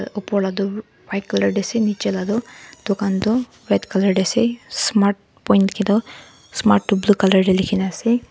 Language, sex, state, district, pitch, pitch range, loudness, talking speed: Nagamese, female, Nagaland, Dimapur, 200 Hz, 195-220 Hz, -19 LUFS, 200 wpm